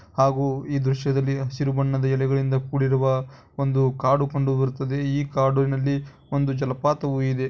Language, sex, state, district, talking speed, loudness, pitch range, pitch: Kannada, male, Karnataka, Bijapur, 130 wpm, -23 LUFS, 135-140 Hz, 135 Hz